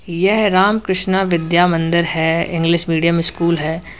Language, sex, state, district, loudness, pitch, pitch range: Hindi, male, Uttar Pradesh, Lalitpur, -16 LUFS, 170 Hz, 165-185 Hz